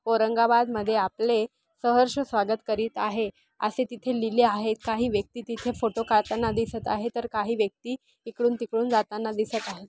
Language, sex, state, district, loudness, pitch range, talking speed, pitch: Marathi, female, Maharashtra, Aurangabad, -26 LUFS, 220-240 Hz, 160 wpm, 230 Hz